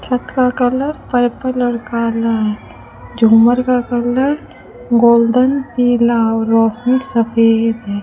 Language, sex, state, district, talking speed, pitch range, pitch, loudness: Hindi, female, Rajasthan, Bikaner, 120 wpm, 230-250 Hz, 240 Hz, -14 LUFS